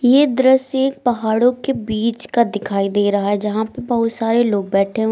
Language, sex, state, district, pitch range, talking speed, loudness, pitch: Hindi, female, Uttar Pradesh, Lucknow, 210-250 Hz, 220 wpm, -17 LUFS, 225 Hz